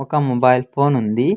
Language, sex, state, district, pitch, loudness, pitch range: Telugu, male, Andhra Pradesh, Anantapur, 130 Hz, -17 LUFS, 125-140 Hz